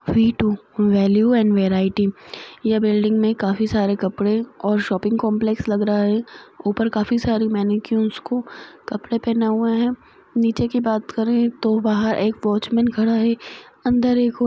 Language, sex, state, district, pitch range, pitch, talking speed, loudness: Hindi, female, Chhattisgarh, Rajnandgaon, 210-230 Hz, 220 Hz, 155 wpm, -20 LUFS